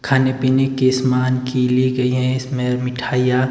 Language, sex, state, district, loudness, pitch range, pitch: Hindi, male, Himachal Pradesh, Shimla, -18 LUFS, 125-130 Hz, 130 Hz